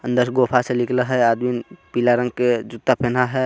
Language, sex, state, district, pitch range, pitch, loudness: Hindi, male, Jharkhand, Garhwa, 120-125 Hz, 125 Hz, -20 LUFS